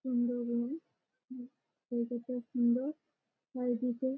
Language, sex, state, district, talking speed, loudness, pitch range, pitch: Bengali, female, West Bengal, Malda, 85 wpm, -35 LUFS, 240-260 Hz, 250 Hz